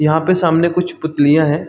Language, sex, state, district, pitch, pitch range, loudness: Hindi, male, Chhattisgarh, Balrampur, 160 Hz, 155-170 Hz, -15 LUFS